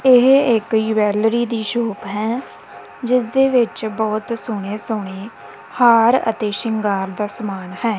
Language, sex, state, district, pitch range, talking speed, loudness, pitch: Punjabi, female, Punjab, Kapurthala, 210-240 Hz, 135 wpm, -18 LUFS, 220 Hz